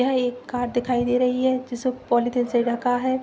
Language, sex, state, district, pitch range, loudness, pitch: Hindi, female, Uttar Pradesh, Gorakhpur, 245-255 Hz, -23 LUFS, 245 Hz